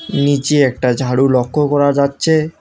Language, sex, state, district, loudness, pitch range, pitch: Bengali, male, West Bengal, Alipurduar, -14 LUFS, 130-145 Hz, 140 Hz